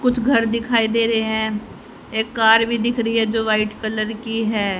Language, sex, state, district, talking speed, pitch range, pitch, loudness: Hindi, female, Haryana, Rohtak, 215 wpm, 220-230 Hz, 225 Hz, -19 LUFS